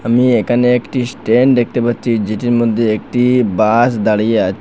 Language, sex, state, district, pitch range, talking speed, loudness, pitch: Bengali, male, Assam, Hailakandi, 110-125 Hz, 155 wpm, -14 LUFS, 120 Hz